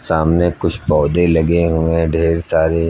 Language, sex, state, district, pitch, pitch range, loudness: Hindi, male, Uttar Pradesh, Lucknow, 80 Hz, 80-85 Hz, -15 LUFS